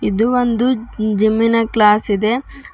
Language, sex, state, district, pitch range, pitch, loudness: Kannada, female, Karnataka, Bidar, 215-245 Hz, 230 Hz, -16 LUFS